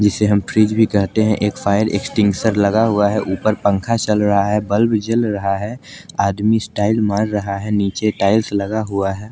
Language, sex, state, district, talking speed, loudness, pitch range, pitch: Hindi, male, Chandigarh, Chandigarh, 200 wpm, -17 LUFS, 100-110 Hz, 105 Hz